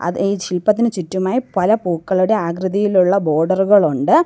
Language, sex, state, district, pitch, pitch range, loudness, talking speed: Malayalam, female, Kerala, Kollam, 190 Hz, 180-210 Hz, -16 LUFS, 125 wpm